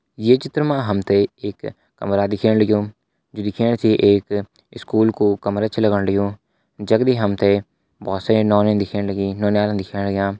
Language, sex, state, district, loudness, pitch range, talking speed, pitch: Hindi, male, Uttarakhand, Uttarkashi, -19 LUFS, 100-110 Hz, 175 wpm, 105 Hz